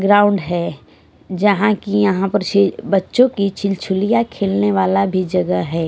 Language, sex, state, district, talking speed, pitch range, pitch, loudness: Hindi, female, Punjab, Fazilka, 155 wpm, 180-205 Hz, 195 Hz, -17 LUFS